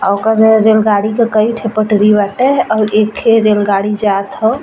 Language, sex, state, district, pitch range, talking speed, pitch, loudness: Bhojpuri, female, Uttar Pradesh, Ghazipur, 205-220 Hz, 195 wpm, 215 Hz, -11 LUFS